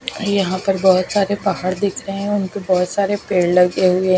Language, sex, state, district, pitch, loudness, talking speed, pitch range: Hindi, female, Himachal Pradesh, Shimla, 195 Hz, -18 LUFS, 200 wpm, 185-200 Hz